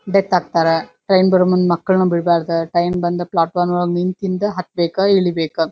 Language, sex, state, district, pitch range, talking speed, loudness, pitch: Kannada, female, Karnataka, Dharwad, 170-185 Hz, 145 wpm, -17 LUFS, 175 Hz